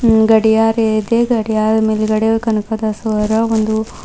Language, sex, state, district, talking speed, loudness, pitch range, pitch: Kannada, female, Karnataka, Bidar, 90 wpm, -15 LUFS, 215-225 Hz, 220 Hz